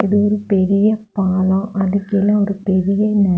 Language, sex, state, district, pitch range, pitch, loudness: Tamil, female, Tamil Nadu, Kanyakumari, 195-205 Hz, 200 Hz, -16 LUFS